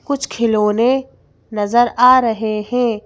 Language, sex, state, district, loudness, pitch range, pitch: Hindi, female, Madhya Pradesh, Bhopal, -15 LUFS, 215-250 Hz, 230 Hz